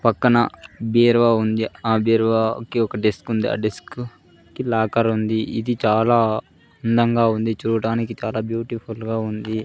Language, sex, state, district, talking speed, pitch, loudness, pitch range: Telugu, male, Andhra Pradesh, Sri Satya Sai, 145 wpm, 115 Hz, -20 LUFS, 110-115 Hz